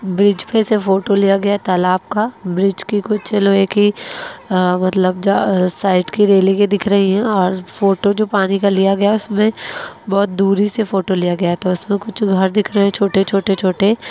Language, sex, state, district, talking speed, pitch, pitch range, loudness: Hindi, female, Bihar, Lakhisarai, 205 wpm, 200 Hz, 190-205 Hz, -15 LUFS